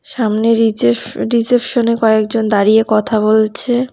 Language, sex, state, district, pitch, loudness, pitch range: Bengali, female, West Bengal, Cooch Behar, 225 Hz, -13 LUFS, 215-235 Hz